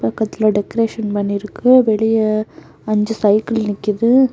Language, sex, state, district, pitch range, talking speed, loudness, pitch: Tamil, female, Tamil Nadu, Kanyakumari, 210-225 Hz, 95 wpm, -16 LUFS, 215 Hz